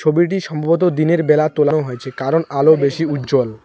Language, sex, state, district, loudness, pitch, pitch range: Bengali, male, West Bengal, Alipurduar, -16 LUFS, 155 Hz, 140-165 Hz